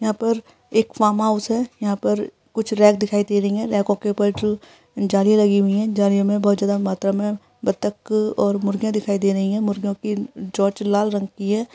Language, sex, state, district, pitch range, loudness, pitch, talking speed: Hindi, female, Uttarakhand, Uttarkashi, 200-215 Hz, -20 LUFS, 205 Hz, 215 wpm